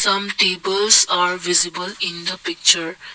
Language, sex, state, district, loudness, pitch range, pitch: English, male, Assam, Kamrup Metropolitan, -17 LUFS, 175-195 Hz, 180 Hz